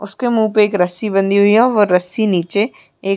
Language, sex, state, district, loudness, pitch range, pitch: Hindi, female, Uttar Pradesh, Muzaffarnagar, -14 LUFS, 195-220 Hz, 205 Hz